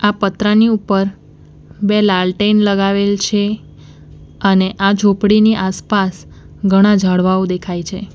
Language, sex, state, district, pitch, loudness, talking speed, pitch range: Gujarati, female, Gujarat, Valsad, 200 Hz, -14 LUFS, 110 wpm, 190-205 Hz